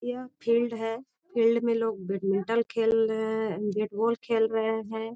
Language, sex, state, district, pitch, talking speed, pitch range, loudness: Hindi, female, Bihar, Jamui, 225 Hz, 160 wpm, 220-230 Hz, -28 LUFS